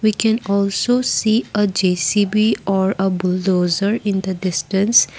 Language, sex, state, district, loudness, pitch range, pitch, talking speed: English, female, Assam, Kamrup Metropolitan, -18 LUFS, 190-215 Hz, 200 Hz, 140 wpm